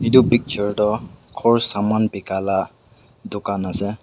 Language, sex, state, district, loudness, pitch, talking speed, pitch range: Nagamese, male, Nagaland, Dimapur, -20 LUFS, 105 Hz, 150 wpm, 100-115 Hz